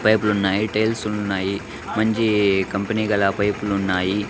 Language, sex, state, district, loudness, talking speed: Telugu, male, Andhra Pradesh, Sri Satya Sai, -21 LUFS, 110 wpm